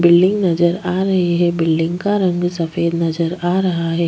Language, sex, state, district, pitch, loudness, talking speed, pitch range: Hindi, female, Chhattisgarh, Bastar, 175 Hz, -17 LUFS, 190 wpm, 170-180 Hz